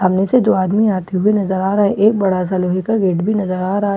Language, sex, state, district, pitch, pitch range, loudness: Hindi, female, Bihar, Katihar, 195 Hz, 185-205 Hz, -16 LUFS